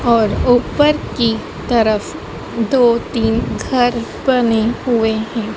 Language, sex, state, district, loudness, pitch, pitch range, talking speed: Hindi, female, Madhya Pradesh, Dhar, -16 LUFS, 235 Hz, 225-245 Hz, 110 wpm